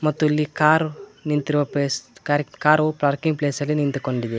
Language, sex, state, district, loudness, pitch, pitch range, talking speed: Kannada, male, Karnataka, Koppal, -21 LUFS, 150 Hz, 145-155 Hz, 135 wpm